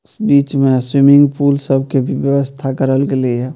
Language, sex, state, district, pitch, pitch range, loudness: Maithili, male, Bihar, Purnia, 140 Hz, 135-140 Hz, -13 LUFS